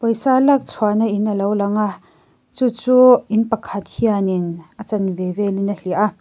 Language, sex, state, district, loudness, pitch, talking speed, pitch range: Mizo, female, Mizoram, Aizawl, -18 LUFS, 210 Hz, 175 wpm, 200-230 Hz